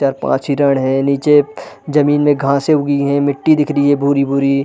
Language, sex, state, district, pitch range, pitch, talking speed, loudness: Hindi, male, Chhattisgarh, Balrampur, 140-145 Hz, 140 Hz, 220 wpm, -14 LUFS